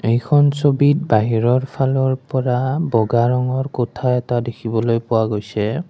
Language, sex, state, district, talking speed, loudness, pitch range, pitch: Assamese, male, Assam, Kamrup Metropolitan, 120 wpm, -18 LUFS, 115-135 Hz, 125 Hz